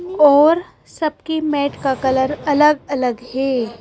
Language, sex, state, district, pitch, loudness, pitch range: Hindi, female, Madhya Pradesh, Bhopal, 285 Hz, -17 LUFS, 265-305 Hz